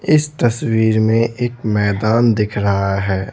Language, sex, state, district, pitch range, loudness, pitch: Hindi, male, Bihar, Patna, 105-120 Hz, -16 LUFS, 110 Hz